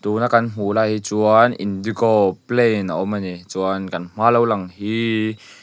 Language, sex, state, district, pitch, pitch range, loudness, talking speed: Mizo, male, Mizoram, Aizawl, 110 Hz, 95-115 Hz, -19 LUFS, 180 wpm